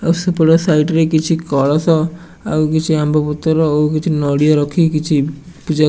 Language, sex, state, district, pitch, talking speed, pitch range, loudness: Odia, male, Odisha, Nuapada, 155 Hz, 175 wpm, 150-165 Hz, -15 LUFS